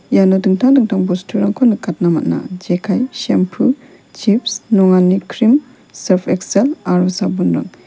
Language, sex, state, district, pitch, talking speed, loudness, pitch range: Garo, female, Meghalaya, West Garo Hills, 195 Hz, 115 wpm, -15 LUFS, 185-240 Hz